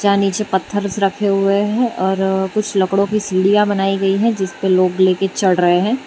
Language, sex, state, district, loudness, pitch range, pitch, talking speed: Hindi, female, Gujarat, Valsad, -16 LUFS, 190-205 Hz, 195 Hz, 195 wpm